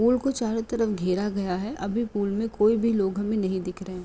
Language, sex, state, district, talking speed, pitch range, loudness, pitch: Hindi, female, Uttar Pradesh, Etah, 250 wpm, 190-225 Hz, -26 LUFS, 210 Hz